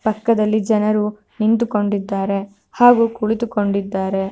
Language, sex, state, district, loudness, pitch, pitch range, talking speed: Kannada, female, Karnataka, Mysore, -18 LUFS, 210 Hz, 200-225 Hz, 70 wpm